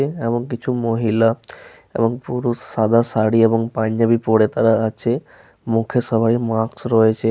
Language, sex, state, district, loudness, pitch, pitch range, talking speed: Bengali, male, Jharkhand, Sahebganj, -18 LUFS, 115 Hz, 110-120 Hz, 130 wpm